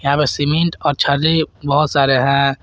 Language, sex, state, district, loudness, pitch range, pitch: Hindi, male, Jharkhand, Garhwa, -16 LUFS, 140-150 Hz, 145 Hz